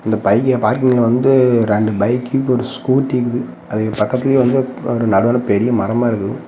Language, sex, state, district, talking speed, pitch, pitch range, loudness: Tamil, male, Tamil Nadu, Namakkal, 150 wpm, 120 Hz, 110-130 Hz, -15 LUFS